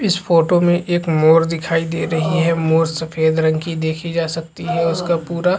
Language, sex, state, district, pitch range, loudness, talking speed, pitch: Chhattisgarhi, male, Chhattisgarh, Jashpur, 160-170 Hz, -17 LUFS, 205 wpm, 165 Hz